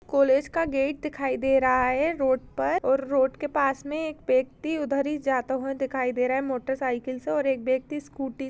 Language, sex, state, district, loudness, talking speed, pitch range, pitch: Hindi, female, Maharashtra, Aurangabad, -26 LUFS, 220 wpm, 260-295 Hz, 270 Hz